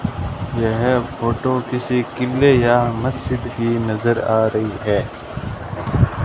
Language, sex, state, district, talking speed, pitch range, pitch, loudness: Hindi, male, Rajasthan, Bikaner, 105 wpm, 110-125 Hz, 120 Hz, -19 LUFS